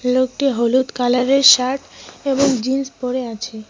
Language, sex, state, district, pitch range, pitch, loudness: Bengali, female, West Bengal, Cooch Behar, 245-270 Hz, 255 Hz, -17 LUFS